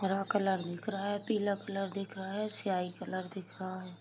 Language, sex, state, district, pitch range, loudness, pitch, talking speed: Hindi, female, Bihar, Sitamarhi, 185-200 Hz, -35 LUFS, 195 Hz, 225 wpm